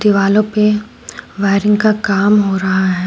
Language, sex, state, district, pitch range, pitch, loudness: Hindi, female, Uttar Pradesh, Shamli, 195-210 Hz, 205 Hz, -14 LUFS